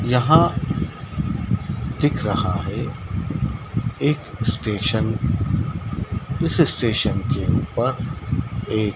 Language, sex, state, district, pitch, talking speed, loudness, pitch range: Hindi, male, Madhya Pradesh, Dhar, 115 Hz, 80 wpm, -22 LUFS, 105-135 Hz